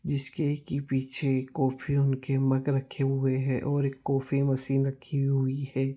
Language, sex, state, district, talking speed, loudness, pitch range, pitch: Hindi, male, Chhattisgarh, Sukma, 170 wpm, -28 LUFS, 135-140 Hz, 135 Hz